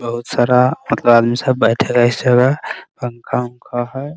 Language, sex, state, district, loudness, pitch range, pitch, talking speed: Hindi, male, Bihar, Muzaffarpur, -15 LUFS, 120-130 Hz, 120 Hz, 160 wpm